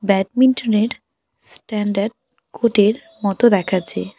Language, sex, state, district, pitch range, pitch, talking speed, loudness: Bengali, female, West Bengal, Alipurduar, 195-235 Hz, 210 Hz, 100 wpm, -18 LUFS